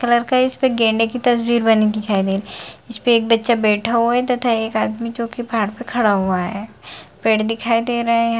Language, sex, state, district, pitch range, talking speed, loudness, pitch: Hindi, female, Jharkhand, Sahebganj, 220-240 Hz, 230 wpm, -18 LUFS, 230 Hz